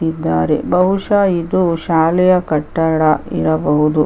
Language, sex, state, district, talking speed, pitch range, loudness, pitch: Kannada, female, Karnataka, Chamarajanagar, 75 wpm, 155-180 Hz, -15 LUFS, 165 Hz